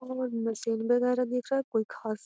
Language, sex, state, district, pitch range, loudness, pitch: Magahi, female, Bihar, Gaya, 225-250 Hz, -30 LUFS, 245 Hz